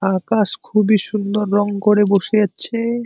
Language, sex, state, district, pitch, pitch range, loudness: Bengali, male, West Bengal, Malda, 210 Hz, 200-215 Hz, -16 LUFS